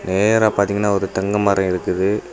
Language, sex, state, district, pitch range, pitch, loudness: Tamil, male, Tamil Nadu, Kanyakumari, 95-105 Hz, 100 Hz, -18 LUFS